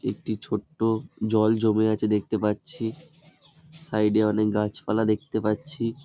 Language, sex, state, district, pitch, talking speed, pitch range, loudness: Bengali, male, West Bengal, Jalpaiguri, 110 Hz, 140 wpm, 105-140 Hz, -25 LUFS